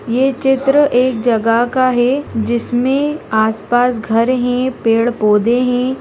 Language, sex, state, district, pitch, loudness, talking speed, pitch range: Hindi, female, Rajasthan, Nagaur, 245 Hz, -14 LUFS, 130 wpm, 230-260 Hz